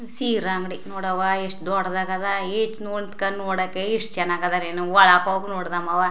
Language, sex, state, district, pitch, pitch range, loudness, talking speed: Kannada, female, Karnataka, Chamarajanagar, 190 Hz, 185-200 Hz, -22 LUFS, 165 wpm